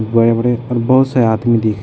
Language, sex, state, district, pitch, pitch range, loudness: Hindi, male, Bihar, Jahanabad, 115 Hz, 115-120 Hz, -14 LUFS